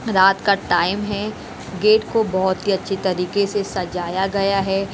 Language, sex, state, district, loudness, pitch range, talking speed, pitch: Hindi, female, Haryana, Rohtak, -19 LUFS, 185-205 Hz, 170 wpm, 195 Hz